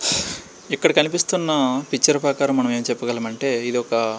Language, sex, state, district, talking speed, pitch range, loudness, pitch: Telugu, male, Andhra Pradesh, Srikakulam, 155 wpm, 120-145 Hz, -20 LUFS, 130 Hz